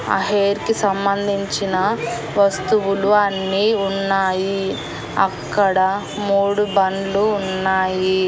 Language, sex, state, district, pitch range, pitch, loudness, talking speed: Telugu, female, Andhra Pradesh, Annamaya, 190-205 Hz, 195 Hz, -19 LUFS, 80 wpm